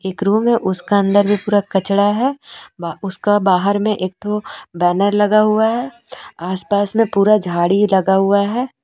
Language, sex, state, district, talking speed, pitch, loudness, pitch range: Hindi, female, Jharkhand, Deoghar, 170 wpm, 205 Hz, -16 LUFS, 190-215 Hz